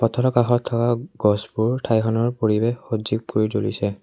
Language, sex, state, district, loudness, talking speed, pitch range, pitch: Assamese, male, Assam, Kamrup Metropolitan, -21 LUFS, 135 wpm, 110-120 Hz, 115 Hz